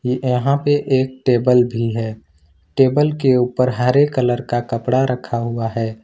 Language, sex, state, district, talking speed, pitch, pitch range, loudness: Hindi, male, Jharkhand, Ranchi, 170 wpm, 125 Hz, 115-130 Hz, -17 LUFS